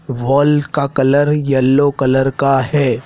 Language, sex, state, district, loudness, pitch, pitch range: Hindi, male, Madhya Pradesh, Dhar, -14 LUFS, 140 Hz, 130-145 Hz